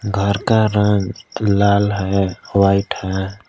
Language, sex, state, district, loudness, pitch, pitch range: Hindi, male, Jharkhand, Palamu, -17 LUFS, 100 Hz, 100-105 Hz